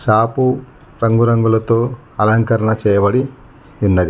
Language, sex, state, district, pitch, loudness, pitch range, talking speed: Telugu, male, Telangana, Mahabubabad, 115 Hz, -15 LUFS, 110-130 Hz, 75 wpm